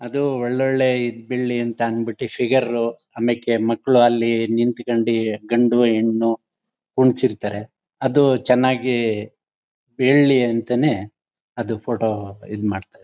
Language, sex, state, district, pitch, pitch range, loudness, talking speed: Kannada, male, Karnataka, Mysore, 120 Hz, 115-130 Hz, -20 LUFS, 100 wpm